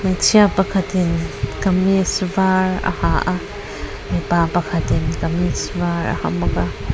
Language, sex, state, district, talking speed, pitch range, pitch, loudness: Mizo, female, Mizoram, Aizawl, 130 wpm, 170-190 Hz, 180 Hz, -18 LUFS